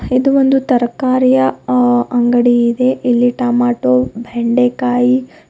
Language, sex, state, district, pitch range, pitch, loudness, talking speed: Kannada, female, Karnataka, Bidar, 240-255 Hz, 245 Hz, -13 LUFS, 100 wpm